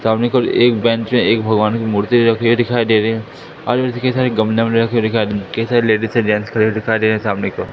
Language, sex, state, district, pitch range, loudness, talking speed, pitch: Hindi, male, Madhya Pradesh, Katni, 110-120 Hz, -15 LUFS, 265 wpm, 115 Hz